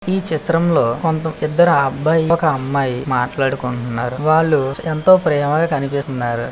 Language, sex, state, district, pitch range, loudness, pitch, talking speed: Telugu, male, Andhra Pradesh, Visakhapatnam, 135-160 Hz, -17 LUFS, 150 Hz, 85 wpm